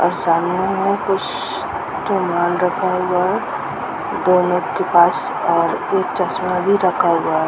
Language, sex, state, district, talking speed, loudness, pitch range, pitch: Hindi, female, Uttar Pradesh, Muzaffarnagar, 120 wpm, -18 LUFS, 175-190 Hz, 180 Hz